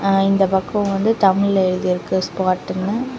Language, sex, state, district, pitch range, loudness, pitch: Tamil, female, Tamil Nadu, Kanyakumari, 185-200 Hz, -18 LUFS, 195 Hz